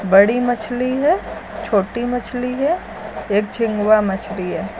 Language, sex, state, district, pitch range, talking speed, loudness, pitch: Hindi, female, Uttar Pradesh, Lucknow, 205-245 Hz, 125 wpm, -19 LUFS, 225 Hz